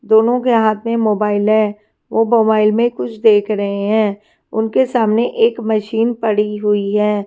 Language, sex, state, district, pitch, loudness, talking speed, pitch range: Hindi, female, Himachal Pradesh, Shimla, 220 Hz, -15 LUFS, 165 wpm, 210-225 Hz